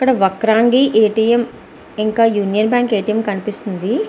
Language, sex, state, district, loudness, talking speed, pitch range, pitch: Telugu, female, Andhra Pradesh, Visakhapatnam, -15 LUFS, 175 wpm, 210-235 Hz, 220 Hz